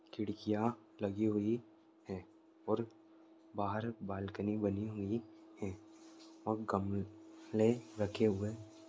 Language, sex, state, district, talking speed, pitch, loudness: Hindi, male, Goa, North and South Goa, 100 wpm, 110 Hz, -39 LUFS